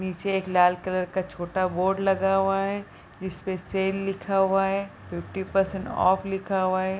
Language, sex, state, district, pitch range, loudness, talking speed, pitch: Hindi, female, Bihar, Bhagalpur, 185-195 Hz, -26 LUFS, 205 wpm, 190 Hz